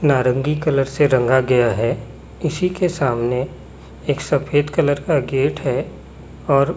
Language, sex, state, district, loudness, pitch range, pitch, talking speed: Hindi, male, Chhattisgarh, Raipur, -19 LUFS, 125-150 Hz, 140 Hz, 140 wpm